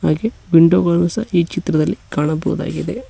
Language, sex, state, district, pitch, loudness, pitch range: Kannada, male, Karnataka, Koppal, 175 Hz, -17 LUFS, 165-185 Hz